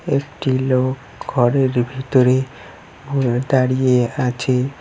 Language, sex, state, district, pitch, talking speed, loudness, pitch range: Bengali, male, West Bengal, Cooch Behar, 130 Hz, 85 wpm, -18 LUFS, 125-135 Hz